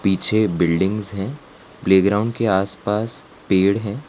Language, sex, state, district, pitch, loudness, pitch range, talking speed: Hindi, male, Gujarat, Valsad, 100 Hz, -19 LUFS, 95-110 Hz, 115 wpm